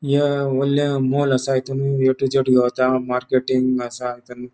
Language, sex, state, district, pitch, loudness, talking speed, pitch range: Konkani, male, Goa, North and South Goa, 130 Hz, -19 LUFS, 170 wpm, 125-135 Hz